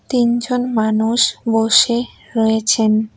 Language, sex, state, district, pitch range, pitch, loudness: Bengali, female, West Bengal, Cooch Behar, 220-240 Hz, 225 Hz, -16 LUFS